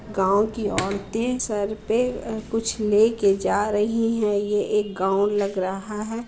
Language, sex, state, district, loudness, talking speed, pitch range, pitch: Hindi, female, Bihar, Muzaffarpur, -23 LUFS, 155 wpm, 200-225 Hz, 210 Hz